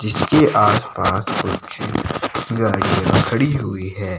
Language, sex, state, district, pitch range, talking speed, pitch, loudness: Hindi, male, Himachal Pradesh, Shimla, 95-115 Hz, 115 wpm, 105 Hz, -18 LUFS